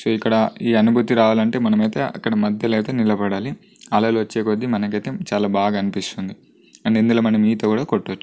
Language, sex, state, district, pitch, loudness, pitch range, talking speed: Telugu, male, Telangana, Karimnagar, 110 Hz, -19 LUFS, 105-115 Hz, 160 wpm